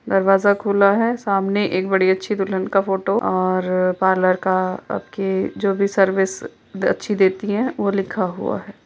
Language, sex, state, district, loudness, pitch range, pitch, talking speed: Hindi, female, Uttarakhand, Uttarkashi, -19 LUFS, 190-200 Hz, 195 Hz, 160 wpm